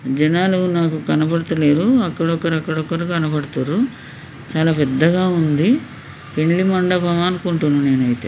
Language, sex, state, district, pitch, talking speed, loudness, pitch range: Telugu, male, Telangana, Nalgonda, 160 Hz, 110 wpm, -18 LUFS, 150-175 Hz